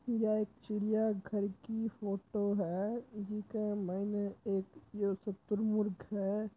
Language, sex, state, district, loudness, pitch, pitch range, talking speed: Marwari, male, Rajasthan, Churu, -37 LUFS, 210 Hz, 200-215 Hz, 110 wpm